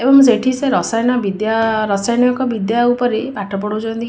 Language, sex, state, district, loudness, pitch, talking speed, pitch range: Odia, female, Odisha, Khordha, -16 LUFS, 235 Hz, 145 wpm, 220-250 Hz